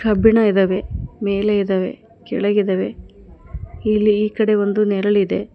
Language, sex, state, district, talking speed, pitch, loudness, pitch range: Kannada, female, Karnataka, Koppal, 95 wpm, 205 Hz, -18 LUFS, 200-210 Hz